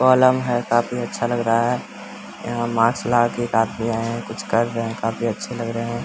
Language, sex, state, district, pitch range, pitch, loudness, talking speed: Hindi, male, Bihar, Samastipur, 115-120 Hz, 120 Hz, -21 LUFS, 265 wpm